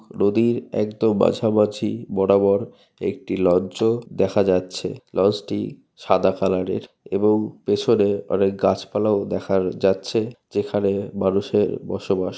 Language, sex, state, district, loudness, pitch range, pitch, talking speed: Bengali, male, West Bengal, North 24 Parganas, -21 LUFS, 95-105 Hz, 100 Hz, 120 wpm